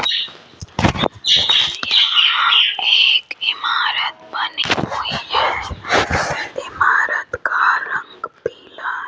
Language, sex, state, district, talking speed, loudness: Hindi, female, Rajasthan, Jaipur, 75 wpm, -15 LUFS